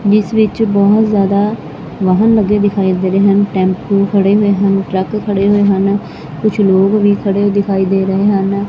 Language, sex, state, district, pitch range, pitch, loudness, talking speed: Punjabi, female, Punjab, Fazilka, 195-205 Hz, 200 Hz, -12 LUFS, 180 wpm